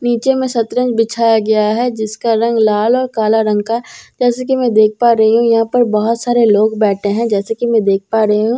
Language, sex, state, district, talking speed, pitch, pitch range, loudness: Hindi, female, Bihar, Katihar, 245 wpm, 225 Hz, 215-240 Hz, -13 LUFS